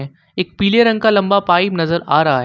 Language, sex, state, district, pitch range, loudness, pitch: Hindi, male, Jharkhand, Ranchi, 160-200 Hz, -15 LUFS, 180 Hz